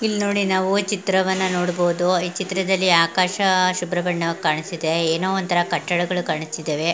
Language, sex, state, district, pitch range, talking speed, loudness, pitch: Kannada, female, Karnataka, Belgaum, 170-190 Hz, 130 wpm, -20 LUFS, 180 Hz